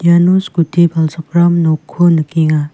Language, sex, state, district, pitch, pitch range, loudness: Garo, female, Meghalaya, West Garo Hills, 165 Hz, 160-170 Hz, -12 LUFS